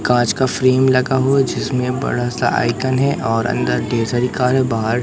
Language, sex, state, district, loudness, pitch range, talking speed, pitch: Hindi, male, Madhya Pradesh, Katni, -17 LUFS, 120-130 Hz, 190 wpm, 125 Hz